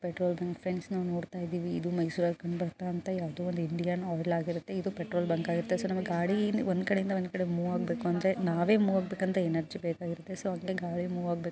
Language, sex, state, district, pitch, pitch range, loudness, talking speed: Kannada, female, Karnataka, Mysore, 175 Hz, 170-185 Hz, -32 LUFS, 205 wpm